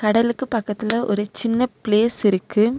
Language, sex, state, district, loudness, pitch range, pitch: Tamil, female, Tamil Nadu, Nilgiris, -20 LUFS, 210-235 Hz, 220 Hz